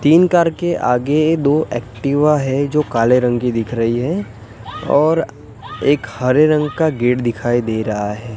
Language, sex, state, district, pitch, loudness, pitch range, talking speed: Hindi, male, Gujarat, Gandhinagar, 125 Hz, -16 LUFS, 115-150 Hz, 170 wpm